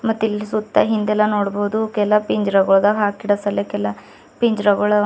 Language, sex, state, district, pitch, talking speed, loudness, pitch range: Kannada, female, Karnataka, Bidar, 210 Hz, 105 wpm, -18 LUFS, 205-215 Hz